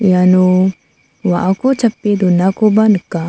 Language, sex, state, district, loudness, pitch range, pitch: Garo, female, Meghalaya, South Garo Hills, -13 LUFS, 180-210 Hz, 185 Hz